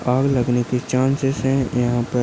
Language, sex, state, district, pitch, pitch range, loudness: Hindi, male, Maharashtra, Aurangabad, 125 Hz, 120-135 Hz, -20 LUFS